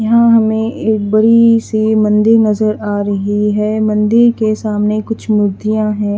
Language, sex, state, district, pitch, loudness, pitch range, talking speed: Hindi, female, Haryana, Charkhi Dadri, 215 Hz, -12 LUFS, 210-225 Hz, 155 wpm